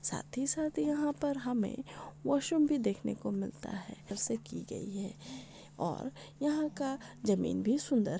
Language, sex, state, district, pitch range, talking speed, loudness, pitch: Hindi, female, Maharashtra, Pune, 205-295 Hz, 130 wpm, -35 LUFS, 260 Hz